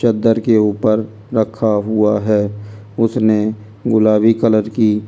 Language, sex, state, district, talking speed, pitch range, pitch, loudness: Hindi, male, Delhi, New Delhi, 140 wpm, 105-115 Hz, 110 Hz, -15 LUFS